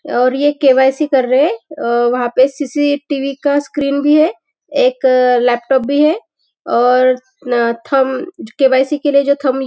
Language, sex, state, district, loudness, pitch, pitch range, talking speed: Hindi, female, Maharashtra, Nagpur, -14 LUFS, 270 Hz, 255-290 Hz, 175 wpm